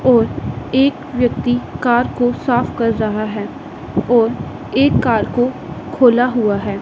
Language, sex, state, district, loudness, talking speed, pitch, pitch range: Hindi, female, Punjab, Pathankot, -16 LUFS, 140 wpm, 245 Hz, 225-245 Hz